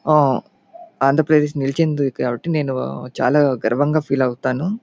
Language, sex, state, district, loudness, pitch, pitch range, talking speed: Telugu, male, Andhra Pradesh, Chittoor, -19 LUFS, 140 Hz, 130-155 Hz, 125 wpm